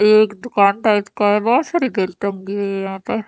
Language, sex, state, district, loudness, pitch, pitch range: Hindi, female, Haryana, Charkhi Dadri, -18 LUFS, 205 Hz, 200-230 Hz